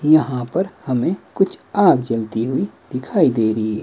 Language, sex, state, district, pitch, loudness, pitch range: Hindi, male, Himachal Pradesh, Shimla, 125 Hz, -19 LUFS, 115-155 Hz